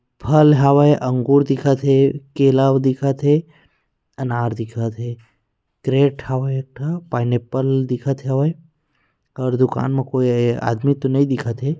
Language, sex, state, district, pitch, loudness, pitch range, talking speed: Chhattisgarhi, male, Chhattisgarh, Rajnandgaon, 135 Hz, -18 LUFS, 125-140 Hz, 145 wpm